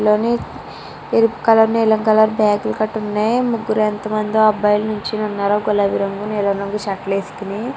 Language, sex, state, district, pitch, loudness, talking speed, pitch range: Telugu, female, Andhra Pradesh, Srikakulam, 215 Hz, -17 LUFS, 155 wpm, 205-220 Hz